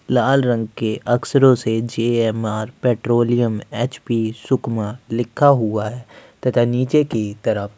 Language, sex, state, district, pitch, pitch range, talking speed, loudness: Hindi, male, Chhattisgarh, Sukma, 120 Hz, 110-125 Hz, 140 wpm, -19 LUFS